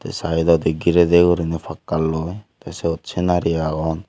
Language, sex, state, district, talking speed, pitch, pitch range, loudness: Chakma, male, Tripura, Unakoti, 145 wpm, 85 Hz, 80-85 Hz, -19 LUFS